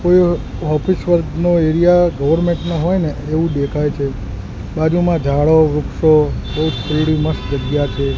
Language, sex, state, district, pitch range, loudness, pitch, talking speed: Gujarati, male, Gujarat, Gandhinagar, 145-170 Hz, -16 LUFS, 155 Hz, 125 wpm